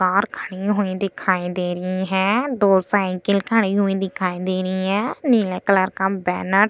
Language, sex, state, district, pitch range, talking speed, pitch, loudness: Hindi, female, Bihar, Vaishali, 185-200 Hz, 180 wpm, 190 Hz, -20 LUFS